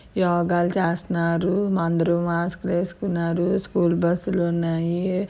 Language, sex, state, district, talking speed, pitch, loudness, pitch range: Telugu, female, Telangana, Karimnagar, 125 wpm, 175 Hz, -23 LUFS, 170-185 Hz